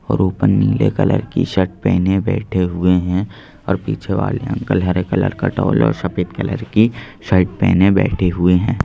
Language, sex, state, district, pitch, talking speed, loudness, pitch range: Hindi, male, Madhya Pradesh, Bhopal, 95 Hz, 185 wpm, -17 LUFS, 90-105 Hz